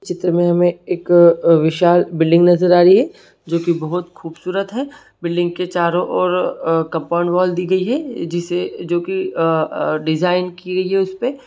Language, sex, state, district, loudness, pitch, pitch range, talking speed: Hindi, male, Jharkhand, Sahebganj, -16 LUFS, 175 Hz, 170-180 Hz, 185 wpm